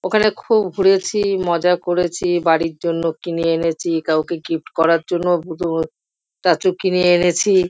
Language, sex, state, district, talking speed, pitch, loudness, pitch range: Bengali, female, West Bengal, Kolkata, 125 wpm, 175 Hz, -18 LUFS, 165-185 Hz